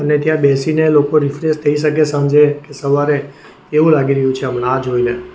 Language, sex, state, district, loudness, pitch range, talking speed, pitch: Gujarati, male, Gujarat, Valsad, -14 LUFS, 140-150 Hz, 190 wpm, 145 Hz